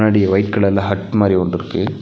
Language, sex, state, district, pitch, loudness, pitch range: Tamil, male, Tamil Nadu, Nilgiris, 100 Hz, -16 LUFS, 95-105 Hz